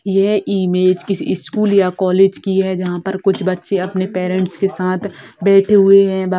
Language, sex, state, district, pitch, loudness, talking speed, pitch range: Hindi, female, Bihar, Sitamarhi, 190 Hz, -15 LUFS, 180 wpm, 185-195 Hz